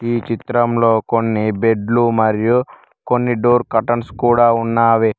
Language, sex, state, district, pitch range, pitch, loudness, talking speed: Telugu, male, Telangana, Mahabubabad, 115-120 Hz, 115 Hz, -16 LUFS, 115 wpm